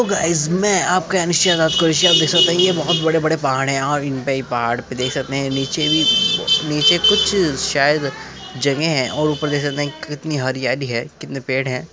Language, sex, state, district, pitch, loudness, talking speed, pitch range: Hindi, male, Uttar Pradesh, Muzaffarnagar, 150 Hz, -17 LUFS, 220 wpm, 135-170 Hz